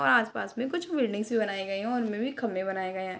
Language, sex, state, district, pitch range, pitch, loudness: Hindi, female, Bihar, Darbhanga, 195-245 Hz, 220 Hz, -30 LUFS